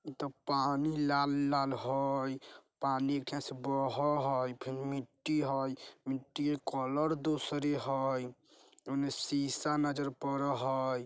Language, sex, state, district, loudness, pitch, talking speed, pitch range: Bajjika, male, Bihar, Vaishali, -34 LUFS, 140 Hz, 130 wpm, 135-145 Hz